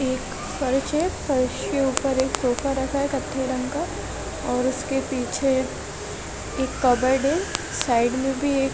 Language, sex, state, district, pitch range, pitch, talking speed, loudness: Hindi, female, Chhattisgarh, Balrampur, 260-275 Hz, 265 Hz, 150 wpm, -24 LUFS